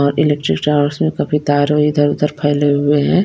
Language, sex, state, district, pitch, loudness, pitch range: Hindi, female, Bihar, Patna, 145 Hz, -15 LUFS, 145-150 Hz